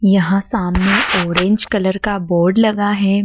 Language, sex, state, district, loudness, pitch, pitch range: Hindi, female, Madhya Pradesh, Dhar, -15 LUFS, 195 Hz, 185-210 Hz